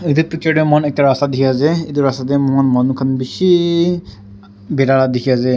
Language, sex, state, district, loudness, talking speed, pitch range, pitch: Nagamese, male, Nagaland, Dimapur, -15 LUFS, 195 wpm, 130-155 Hz, 135 Hz